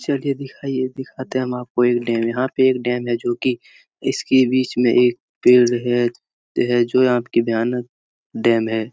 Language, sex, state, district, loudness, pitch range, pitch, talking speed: Hindi, male, Bihar, Supaul, -19 LUFS, 120-130 Hz, 125 Hz, 195 wpm